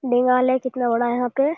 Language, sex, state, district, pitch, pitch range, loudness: Hindi, male, Bihar, Jamui, 250 Hz, 245-260 Hz, -20 LUFS